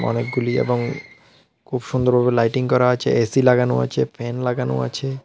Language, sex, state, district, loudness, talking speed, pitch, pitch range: Bengali, male, Tripura, South Tripura, -20 LUFS, 160 wpm, 125 Hz, 115-125 Hz